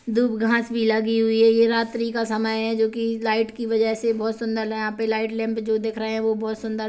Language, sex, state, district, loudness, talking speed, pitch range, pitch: Hindi, female, Chhattisgarh, Kabirdham, -22 LUFS, 270 wpm, 220-230 Hz, 225 Hz